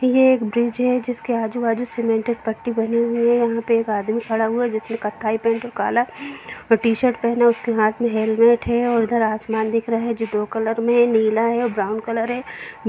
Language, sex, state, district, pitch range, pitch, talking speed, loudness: Hindi, female, Bihar, Jamui, 225-235 Hz, 230 Hz, 230 wpm, -20 LUFS